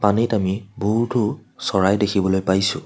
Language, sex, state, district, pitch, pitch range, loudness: Assamese, male, Assam, Kamrup Metropolitan, 105 Hz, 95-115 Hz, -20 LUFS